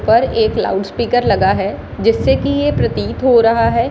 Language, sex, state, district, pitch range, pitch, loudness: Hindi, female, Bihar, Jahanabad, 230-285 Hz, 245 Hz, -15 LUFS